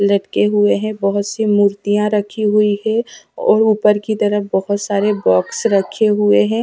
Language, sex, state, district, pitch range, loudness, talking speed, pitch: Hindi, female, Punjab, Fazilka, 200-215 Hz, -16 LUFS, 170 wpm, 205 Hz